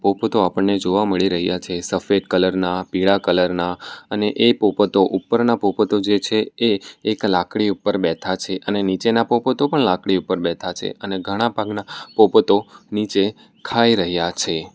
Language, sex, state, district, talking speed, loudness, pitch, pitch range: Gujarati, male, Gujarat, Valsad, 165 wpm, -19 LUFS, 100 Hz, 95-105 Hz